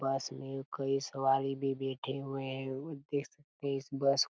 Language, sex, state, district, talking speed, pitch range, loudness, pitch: Hindi, male, Chhattisgarh, Raigarh, 205 wpm, 135-140 Hz, -35 LUFS, 135 Hz